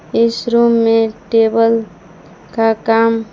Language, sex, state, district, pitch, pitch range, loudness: Hindi, female, Jharkhand, Palamu, 225 Hz, 225-230 Hz, -14 LUFS